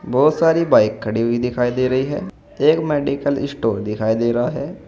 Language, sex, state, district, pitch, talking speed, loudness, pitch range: Hindi, male, Uttar Pradesh, Saharanpur, 130 Hz, 195 wpm, -18 LUFS, 115-150 Hz